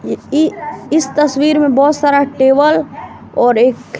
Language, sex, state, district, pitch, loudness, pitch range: Hindi, female, Bihar, West Champaran, 285 Hz, -13 LUFS, 270-300 Hz